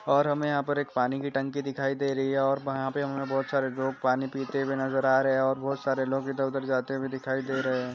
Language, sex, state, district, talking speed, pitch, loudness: Hindi, male, Andhra Pradesh, Chittoor, 270 wpm, 135 Hz, -28 LUFS